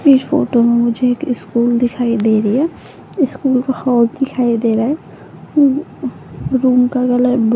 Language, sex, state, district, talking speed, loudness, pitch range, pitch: Hindi, female, Rajasthan, Jaipur, 160 wpm, -15 LUFS, 235-265 Hz, 250 Hz